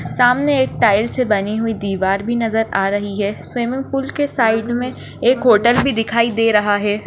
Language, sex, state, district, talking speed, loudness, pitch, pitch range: Hindi, female, Maharashtra, Nagpur, 205 wpm, -17 LUFS, 225 Hz, 205-250 Hz